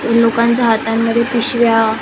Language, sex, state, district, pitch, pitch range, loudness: Marathi, female, Maharashtra, Gondia, 230 Hz, 225-235 Hz, -14 LUFS